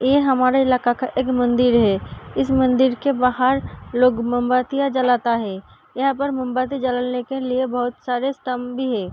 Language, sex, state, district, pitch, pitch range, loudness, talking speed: Hindi, female, Uttar Pradesh, Deoria, 255 Hz, 245-260 Hz, -20 LUFS, 170 wpm